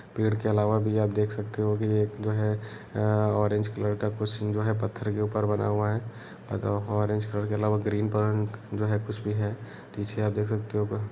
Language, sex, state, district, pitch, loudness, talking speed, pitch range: Hindi, male, Jharkhand, Sahebganj, 105 Hz, -28 LUFS, 230 wpm, 105-110 Hz